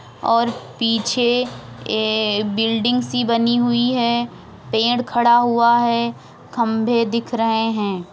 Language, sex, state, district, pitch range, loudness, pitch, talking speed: Hindi, female, Uttar Pradesh, Etah, 225-240 Hz, -18 LUFS, 235 Hz, 120 wpm